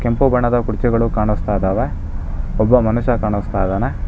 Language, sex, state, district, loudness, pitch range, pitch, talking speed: Kannada, male, Karnataka, Bangalore, -18 LUFS, 95-120 Hz, 110 Hz, 135 wpm